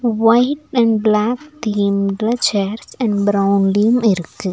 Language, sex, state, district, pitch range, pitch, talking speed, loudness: Tamil, female, Tamil Nadu, Nilgiris, 200-240 Hz, 215 Hz, 105 wpm, -16 LUFS